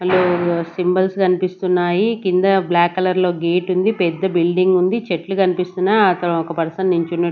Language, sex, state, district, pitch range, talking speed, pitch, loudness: Telugu, female, Andhra Pradesh, Sri Satya Sai, 175-185 Hz, 140 wpm, 180 Hz, -17 LUFS